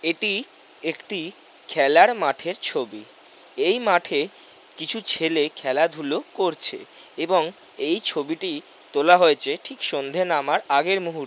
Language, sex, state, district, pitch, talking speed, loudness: Bengali, male, West Bengal, North 24 Parganas, 200 Hz, 115 wpm, -22 LUFS